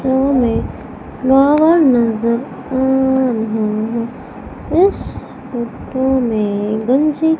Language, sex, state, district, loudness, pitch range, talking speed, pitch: Hindi, female, Madhya Pradesh, Umaria, -15 LUFS, 230-270 Hz, 65 wpm, 260 Hz